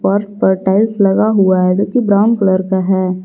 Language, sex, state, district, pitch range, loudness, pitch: Hindi, female, Jharkhand, Garhwa, 190-205 Hz, -13 LUFS, 195 Hz